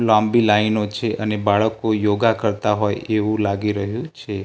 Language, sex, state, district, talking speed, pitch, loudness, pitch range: Gujarati, male, Gujarat, Gandhinagar, 160 wpm, 105 Hz, -19 LUFS, 105-110 Hz